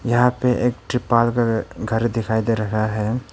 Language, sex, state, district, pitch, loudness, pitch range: Hindi, male, Arunachal Pradesh, Papum Pare, 115 Hz, -20 LUFS, 110-120 Hz